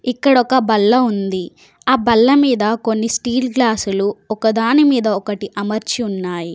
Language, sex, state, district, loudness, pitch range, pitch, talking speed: Telugu, female, Telangana, Komaram Bheem, -16 LUFS, 205-250 Hz, 225 Hz, 135 wpm